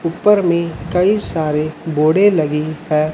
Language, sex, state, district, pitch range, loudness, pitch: Hindi, male, Chhattisgarh, Raipur, 155-180 Hz, -15 LUFS, 160 Hz